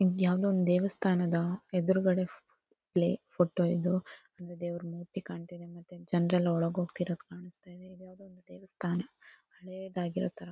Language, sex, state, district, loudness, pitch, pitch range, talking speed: Kannada, female, Karnataka, Dakshina Kannada, -32 LUFS, 180 Hz, 175-185 Hz, 130 wpm